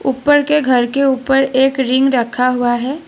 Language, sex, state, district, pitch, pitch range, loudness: Hindi, female, Assam, Sonitpur, 265 Hz, 250-275 Hz, -14 LUFS